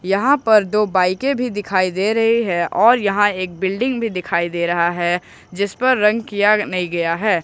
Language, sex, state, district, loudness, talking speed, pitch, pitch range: Hindi, male, Jharkhand, Ranchi, -17 LUFS, 195 wpm, 200 Hz, 180-225 Hz